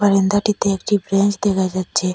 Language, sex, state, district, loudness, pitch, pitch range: Bengali, female, Assam, Hailakandi, -18 LUFS, 195 Hz, 190-205 Hz